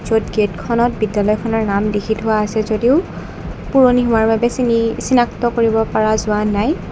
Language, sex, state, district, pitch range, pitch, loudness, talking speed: Assamese, female, Assam, Kamrup Metropolitan, 215-240 Hz, 225 Hz, -16 LUFS, 140 wpm